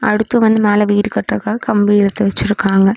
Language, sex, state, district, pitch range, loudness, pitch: Tamil, female, Tamil Nadu, Namakkal, 200-215 Hz, -14 LUFS, 210 Hz